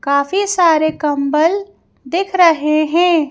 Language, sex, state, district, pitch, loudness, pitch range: Hindi, female, Madhya Pradesh, Bhopal, 325 Hz, -14 LUFS, 300-360 Hz